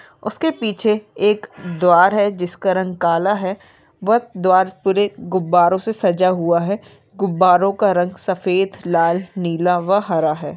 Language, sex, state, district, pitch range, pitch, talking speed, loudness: Hindi, female, Uttarakhand, Uttarkashi, 180-200 Hz, 185 Hz, 150 wpm, -17 LUFS